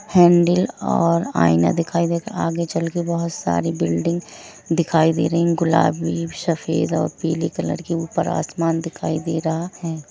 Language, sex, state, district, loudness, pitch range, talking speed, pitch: Hindi, female, Jharkhand, Jamtara, -20 LUFS, 155-170 Hz, 155 wpm, 165 Hz